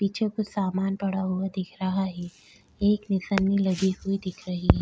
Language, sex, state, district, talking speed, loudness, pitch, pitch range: Hindi, female, Goa, North and South Goa, 185 wpm, -27 LUFS, 195 Hz, 185-200 Hz